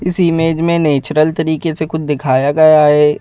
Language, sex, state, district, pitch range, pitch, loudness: Hindi, male, Madhya Pradesh, Bhopal, 150-165 Hz, 155 Hz, -13 LUFS